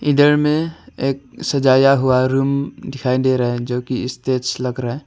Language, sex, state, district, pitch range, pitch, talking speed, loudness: Hindi, male, Arunachal Pradesh, Longding, 125-140 Hz, 130 Hz, 190 wpm, -18 LUFS